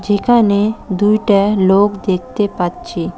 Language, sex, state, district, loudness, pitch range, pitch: Bengali, female, West Bengal, Cooch Behar, -14 LUFS, 195-210 Hz, 205 Hz